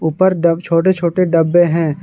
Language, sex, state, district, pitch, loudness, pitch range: Hindi, male, Jharkhand, Garhwa, 170 Hz, -14 LUFS, 165-180 Hz